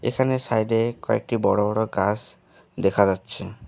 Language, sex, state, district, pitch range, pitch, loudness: Bengali, male, West Bengal, Alipurduar, 100-115 Hz, 105 Hz, -23 LUFS